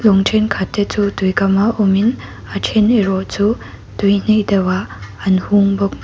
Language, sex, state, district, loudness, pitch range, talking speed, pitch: Mizo, female, Mizoram, Aizawl, -15 LUFS, 195-215 Hz, 170 wpm, 200 Hz